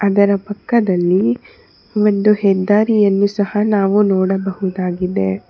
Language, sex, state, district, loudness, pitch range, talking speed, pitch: Kannada, female, Karnataka, Bangalore, -16 LUFS, 190-210 Hz, 75 wpm, 200 Hz